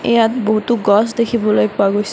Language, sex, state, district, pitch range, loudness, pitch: Assamese, female, Assam, Kamrup Metropolitan, 205-235 Hz, -15 LUFS, 215 Hz